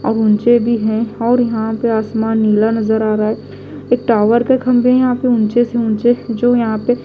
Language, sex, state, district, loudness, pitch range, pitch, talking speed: Hindi, female, Delhi, New Delhi, -14 LUFS, 220-240 Hz, 230 Hz, 220 wpm